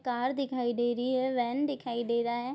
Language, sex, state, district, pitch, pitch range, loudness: Hindi, female, Bihar, Darbhanga, 245 Hz, 240-260 Hz, -31 LUFS